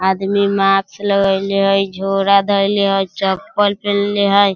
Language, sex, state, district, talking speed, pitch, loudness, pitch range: Hindi, male, Bihar, Sitamarhi, 130 wpm, 195 Hz, -15 LUFS, 195-200 Hz